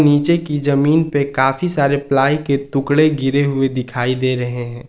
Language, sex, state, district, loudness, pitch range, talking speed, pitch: Hindi, male, Jharkhand, Ranchi, -17 LUFS, 130-145 Hz, 185 wpm, 140 Hz